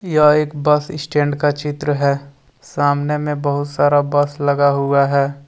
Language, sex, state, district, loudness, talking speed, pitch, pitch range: Hindi, male, Jharkhand, Deoghar, -17 LUFS, 165 wpm, 145 Hz, 140-150 Hz